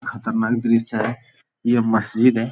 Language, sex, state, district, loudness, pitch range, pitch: Hindi, male, Bihar, Jamui, -20 LUFS, 110-120 Hz, 115 Hz